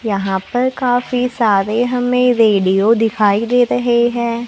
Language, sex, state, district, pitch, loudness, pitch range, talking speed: Hindi, female, Maharashtra, Gondia, 235 Hz, -15 LUFS, 210-245 Hz, 135 wpm